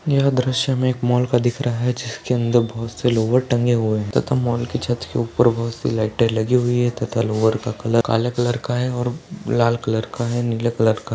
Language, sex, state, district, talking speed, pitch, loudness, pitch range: Hindi, male, Uttar Pradesh, Ghazipur, 240 wpm, 120 Hz, -20 LUFS, 115-125 Hz